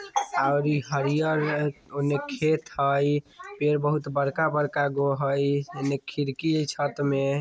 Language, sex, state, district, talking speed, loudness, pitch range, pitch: Maithili, male, Bihar, Muzaffarpur, 130 wpm, -26 LUFS, 140-150 Hz, 145 Hz